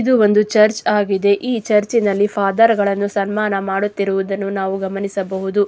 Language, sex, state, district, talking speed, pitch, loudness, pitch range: Kannada, female, Karnataka, Dakshina Kannada, 135 wpm, 200 Hz, -17 LUFS, 195-210 Hz